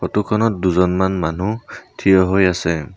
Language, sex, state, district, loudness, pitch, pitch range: Assamese, male, Assam, Sonitpur, -17 LUFS, 95 Hz, 90-100 Hz